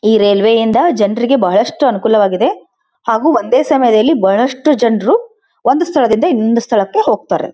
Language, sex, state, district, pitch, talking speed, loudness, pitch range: Kannada, female, Karnataka, Belgaum, 240 Hz, 120 wpm, -12 LUFS, 220-315 Hz